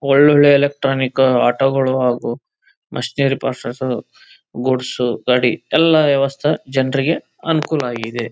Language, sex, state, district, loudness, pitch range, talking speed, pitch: Kannada, male, Karnataka, Chamarajanagar, -17 LUFS, 125-145 Hz, 95 wpm, 135 Hz